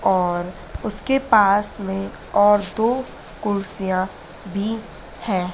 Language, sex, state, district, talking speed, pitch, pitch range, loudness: Hindi, female, Madhya Pradesh, Dhar, 95 wpm, 200 Hz, 185-215 Hz, -21 LUFS